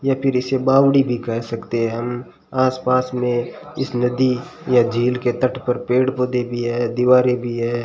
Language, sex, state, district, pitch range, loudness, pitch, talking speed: Hindi, male, Rajasthan, Bikaner, 120-130 Hz, -19 LUFS, 125 Hz, 190 wpm